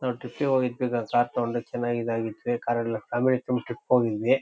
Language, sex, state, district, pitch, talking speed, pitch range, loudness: Kannada, male, Karnataka, Shimoga, 120 Hz, 175 wpm, 120-125 Hz, -27 LUFS